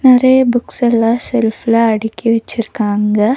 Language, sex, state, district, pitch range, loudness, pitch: Tamil, female, Tamil Nadu, Nilgiris, 220-245 Hz, -13 LUFS, 230 Hz